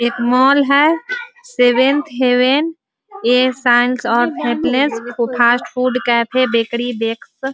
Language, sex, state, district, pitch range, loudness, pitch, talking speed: Hindi, female, Bihar, Muzaffarpur, 240-280 Hz, -15 LUFS, 250 Hz, 120 wpm